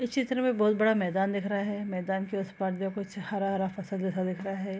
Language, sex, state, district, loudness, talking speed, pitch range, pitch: Hindi, female, Bihar, Saharsa, -30 LUFS, 260 wpm, 190-205 Hz, 195 Hz